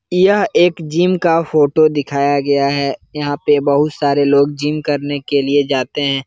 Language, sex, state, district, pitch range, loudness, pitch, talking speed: Hindi, male, Bihar, Jahanabad, 140-155 Hz, -15 LUFS, 145 Hz, 180 wpm